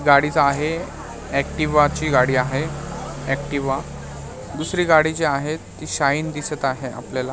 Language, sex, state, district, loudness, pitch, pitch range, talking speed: Marathi, male, Maharashtra, Mumbai Suburban, -21 LUFS, 140 Hz, 130-155 Hz, 130 wpm